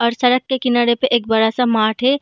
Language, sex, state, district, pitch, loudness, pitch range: Hindi, female, Bihar, Gaya, 240 Hz, -16 LUFS, 230-255 Hz